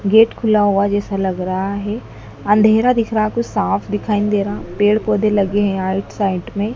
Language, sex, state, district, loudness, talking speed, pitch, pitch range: Hindi, female, Madhya Pradesh, Dhar, -17 LUFS, 195 wpm, 205 Hz, 195-215 Hz